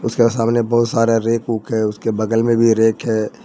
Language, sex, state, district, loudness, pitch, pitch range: Hindi, male, Jharkhand, Ranchi, -17 LUFS, 115 Hz, 110-115 Hz